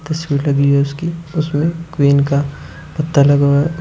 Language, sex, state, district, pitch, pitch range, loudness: Hindi, male, Uttar Pradesh, Shamli, 145 Hz, 140-160 Hz, -15 LUFS